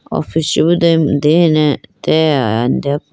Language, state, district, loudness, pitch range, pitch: Idu Mishmi, Arunachal Pradesh, Lower Dibang Valley, -14 LUFS, 145-165 Hz, 155 Hz